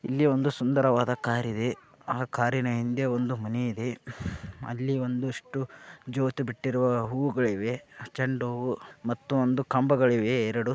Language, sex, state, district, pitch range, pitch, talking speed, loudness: Kannada, male, Karnataka, Dharwad, 120-130 Hz, 125 Hz, 65 wpm, -28 LUFS